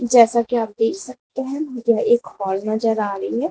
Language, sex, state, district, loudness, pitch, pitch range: Hindi, female, Uttar Pradesh, Lalitpur, -20 LUFS, 225 Hz, 215-240 Hz